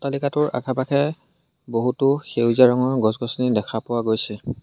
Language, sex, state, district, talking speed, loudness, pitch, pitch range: Assamese, male, Assam, Sonitpur, 115 wpm, -21 LUFS, 130 Hz, 120-140 Hz